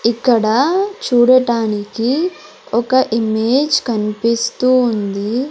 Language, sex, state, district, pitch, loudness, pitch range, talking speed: Telugu, female, Andhra Pradesh, Sri Satya Sai, 235 Hz, -15 LUFS, 225-255 Hz, 65 wpm